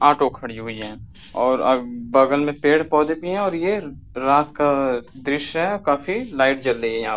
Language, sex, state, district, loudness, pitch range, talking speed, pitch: Hindi, male, Uttar Pradesh, Varanasi, -20 LUFS, 125-150 Hz, 210 wpm, 140 Hz